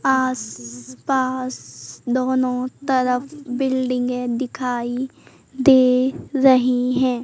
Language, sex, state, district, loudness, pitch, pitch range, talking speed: Hindi, female, Madhya Pradesh, Katni, -20 LUFS, 255 Hz, 250-260 Hz, 75 wpm